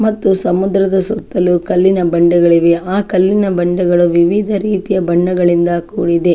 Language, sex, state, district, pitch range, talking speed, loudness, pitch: Kannada, female, Karnataka, Chamarajanagar, 175-195 Hz, 130 wpm, -13 LUFS, 180 Hz